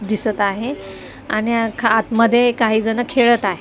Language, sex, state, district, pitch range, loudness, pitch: Marathi, female, Maharashtra, Mumbai Suburban, 215-235 Hz, -17 LUFS, 225 Hz